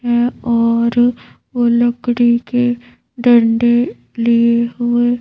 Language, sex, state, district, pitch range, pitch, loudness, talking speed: Hindi, female, Madhya Pradesh, Bhopal, 235-240 Hz, 240 Hz, -14 LUFS, 90 wpm